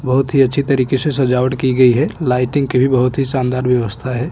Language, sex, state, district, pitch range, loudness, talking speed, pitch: Hindi, male, Chhattisgarh, Bastar, 125-135 Hz, -15 LUFS, 235 wpm, 130 Hz